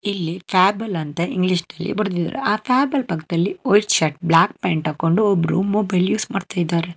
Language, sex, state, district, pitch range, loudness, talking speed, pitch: Kannada, male, Karnataka, Bangalore, 170-205 Hz, -20 LUFS, 165 wpm, 185 Hz